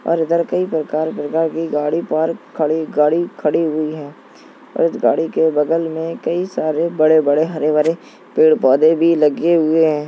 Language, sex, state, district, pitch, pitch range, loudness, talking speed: Hindi, male, Uttar Pradesh, Jalaun, 160 Hz, 155-165 Hz, -17 LUFS, 165 wpm